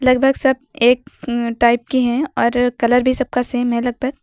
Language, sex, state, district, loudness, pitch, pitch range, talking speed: Hindi, female, Uttar Pradesh, Lucknow, -17 LUFS, 245 Hz, 240-265 Hz, 215 wpm